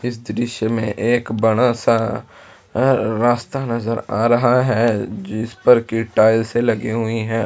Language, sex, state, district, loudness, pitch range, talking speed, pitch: Hindi, male, Jharkhand, Ranchi, -18 LUFS, 110-120 Hz, 135 wpm, 115 Hz